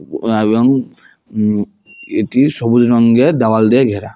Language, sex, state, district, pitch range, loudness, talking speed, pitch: Bengali, male, West Bengal, Alipurduar, 110-130 Hz, -13 LUFS, 130 wpm, 120 Hz